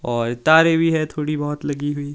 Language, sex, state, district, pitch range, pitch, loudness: Hindi, male, Himachal Pradesh, Shimla, 145-160 Hz, 150 Hz, -19 LUFS